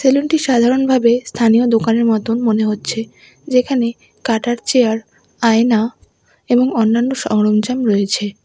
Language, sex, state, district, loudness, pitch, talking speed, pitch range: Bengali, female, West Bengal, Alipurduar, -15 LUFS, 235 Hz, 115 wpm, 225-250 Hz